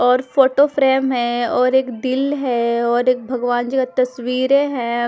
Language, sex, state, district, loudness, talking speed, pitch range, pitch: Hindi, female, Punjab, Fazilka, -17 LUFS, 165 wpm, 240-265 Hz, 255 Hz